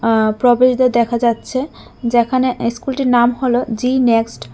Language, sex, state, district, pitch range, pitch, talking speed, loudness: Bengali, female, Tripura, West Tripura, 230-255 Hz, 240 Hz, 145 wpm, -15 LUFS